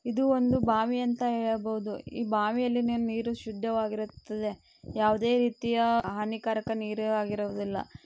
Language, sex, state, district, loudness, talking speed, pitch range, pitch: Kannada, female, Karnataka, Belgaum, -29 LUFS, 105 wpm, 215-235 Hz, 225 Hz